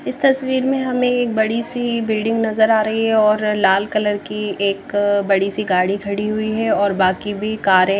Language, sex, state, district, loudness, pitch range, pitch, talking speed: Hindi, female, Himachal Pradesh, Shimla, -18 LUFS, 200-225 Hz, 215 Hz, 190 wpm